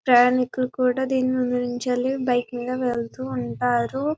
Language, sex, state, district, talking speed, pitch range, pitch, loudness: Telugu, female, Telangana, Karimnagar, 115 wpm, 245-255 Hz, 250 Hz, -23 LUFS